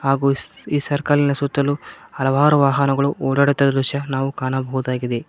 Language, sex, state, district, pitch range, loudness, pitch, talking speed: Kannada, male, Karnataka, Koppal, 135-140 Hz, -19 LUFS, 140 Hz, 125 wpm